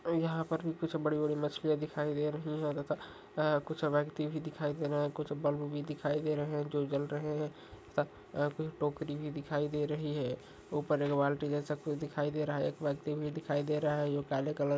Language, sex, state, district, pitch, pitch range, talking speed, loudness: Hindi, male, Uttar Pradesh, Hamirpur, 150 Hz, 145-150 Hz, 245 wpm, -35 LUFS